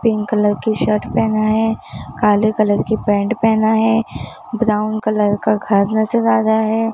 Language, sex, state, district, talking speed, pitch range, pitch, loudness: Hindi, female, Maharashtra, Mumbai Suburban, 170 wpm, 210-220 Hz, 215 Hz, -16 LUFS